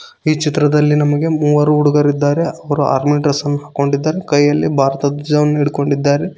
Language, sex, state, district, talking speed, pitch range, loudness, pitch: Kannada, male, Karnataka, Koppal, 140 wpm, 145-150 Hz, -15 LUFS, 145 Hz